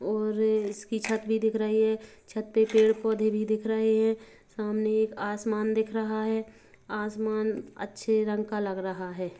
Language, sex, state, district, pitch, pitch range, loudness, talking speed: Hindi, female, Chhattisgarh, Kabirdham, 220 Hz, 215-220 Hz, -28 LUFS, 180 wpm